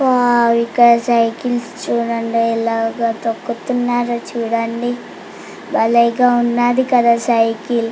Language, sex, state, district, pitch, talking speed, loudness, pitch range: Telugu, female, Andhra Pradesh, Chittoor, 235 Hz, 90 wpm, -16 LUFS, 230-240 Hz